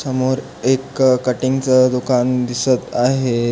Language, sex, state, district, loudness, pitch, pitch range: Marathi, male, Maharashtra, Pune, -17 LUFS, 130 Hz, 125-130 Hz